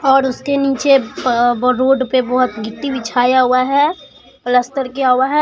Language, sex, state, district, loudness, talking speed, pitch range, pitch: Hindi, male, Bihar, Katihar, -15 LUFS, 165 wpm, 250-275 Hz, 260 Hz